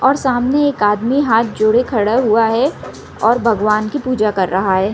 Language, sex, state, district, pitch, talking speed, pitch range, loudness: Hindi, female, Chhattisgarh, Raigarh, 225 Hz, 195 wpm, 210-255 Hz, -15 LUFS